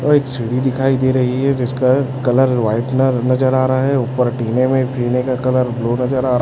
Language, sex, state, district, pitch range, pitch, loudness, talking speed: Hindi, male, Chhattisgarh, Raipur, 125-130 Hz, 130 Hz, -16 LUFS, 215 wpm